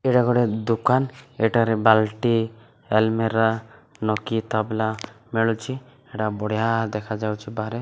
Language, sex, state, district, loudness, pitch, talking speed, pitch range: Odia, male, Odisha, Malkangiri, -23 LUFS, 115 Hz, 115 wpm, 110-120 Hz